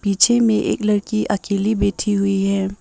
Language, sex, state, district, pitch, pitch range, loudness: Hindi, female, Arunachal Pradesh, Papum Pare, 205 Hz, 200-215 Hz, -18 LUFS